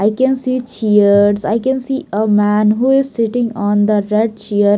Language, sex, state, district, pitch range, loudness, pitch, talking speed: English, female, Maharashtra, Mumbai Suburban, 205-255 Hz, -14 LUFS, 215 Hz, 200 wpm